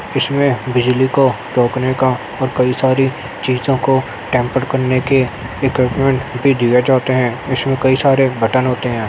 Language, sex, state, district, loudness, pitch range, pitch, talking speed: Hindi, male, Uttar Pradesh, Jyotiba Phule Nagar, -15 LUFS, 125-135 Hz, 130 Hz, 160 wpm